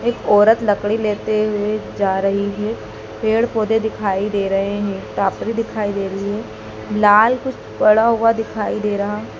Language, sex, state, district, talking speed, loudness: Hindi, female, Madhya Pradesh, Dhar, 165 wpm, -18 LUFS